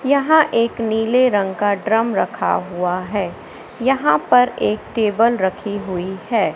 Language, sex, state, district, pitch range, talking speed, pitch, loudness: Hindi, male, Madhya Pradesh, Katni, 190-240 Hz, 145 wpm, 220 Hz, -18 LUFS